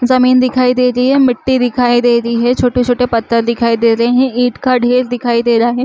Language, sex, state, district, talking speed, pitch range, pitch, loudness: Chhattisgarhi, female, Chhattisgarh, Rajnandgaon, 235 wpm, 235-255 Hz, 245 Hz, -12 LUFS